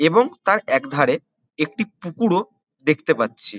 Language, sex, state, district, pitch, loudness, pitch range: Bengali, male, West Bengal, Kolkata, 160 Hz, -21 LUFS, 155-220 Hz